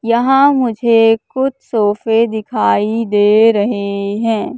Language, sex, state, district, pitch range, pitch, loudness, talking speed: Hindi, female, Madhya Pradesh, Katni, 210-235 Hz, 225 Hz, -13 LUFS, 105 wpm